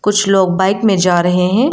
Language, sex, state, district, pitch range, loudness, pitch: Hindi, female, Arunachal Pradesh, Lower Dibang Valley, 180-210 Hz, -13 LUFS, 190 Hz